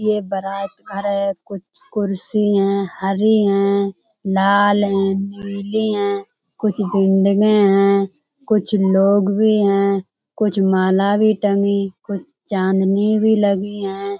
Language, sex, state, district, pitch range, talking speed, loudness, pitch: Hindi, female, Uttar Pradesh, Budaun, 195-205 Hz, 120 wpm, -17 LUFS, 200 Hz